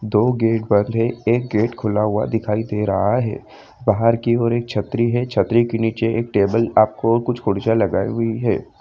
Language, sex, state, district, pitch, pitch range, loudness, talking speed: Hindi, female, Jharkhand, Jamtara, 115 Hz, 105-120 Hz, -19 LUFS, 195 wpm